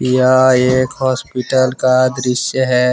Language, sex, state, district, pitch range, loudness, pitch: Hindi, male, Jharkhand, Deoghar, 125-130 Hz, -14 LUFS, 130 Hz